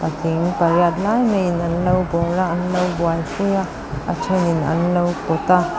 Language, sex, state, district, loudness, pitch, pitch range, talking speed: Mizo, female, Mizoram, Aizawl, -19 LUFS, 175 Hz, 170-185 Hz, 155 wpm